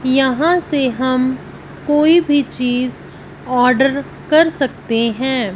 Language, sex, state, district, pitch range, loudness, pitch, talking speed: Hindi, female, Punjab, Fazilka, 250-295 Hz, -15 LUFS, 265 Hz, 110 wpm